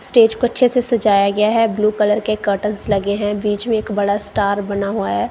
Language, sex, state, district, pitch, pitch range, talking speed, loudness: Hindi, female, Punjab, Kapurthala, 210 Hz, 205-225 Hz, 235 wpm, -17 LUFS